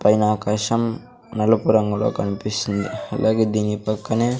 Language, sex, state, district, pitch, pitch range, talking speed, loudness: Telugu, male, Andhra Pradesh, Sri Satya Sai, 105 Hz, 105-110 Hz, 110 wpm, -21 LUFS